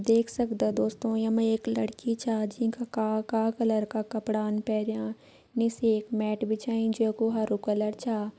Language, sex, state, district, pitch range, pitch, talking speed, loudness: Garhwali, female, Uttarakhand, Uttarkashi, 215-230 Hz, 220 Hz, 170 wpm, -29 LUFS